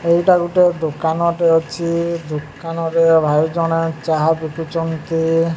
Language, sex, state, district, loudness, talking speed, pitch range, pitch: Odia, male, Odisha, Sambalpur, -17 LUFS, 120 wpm, 160-170 Hz, 165 Hz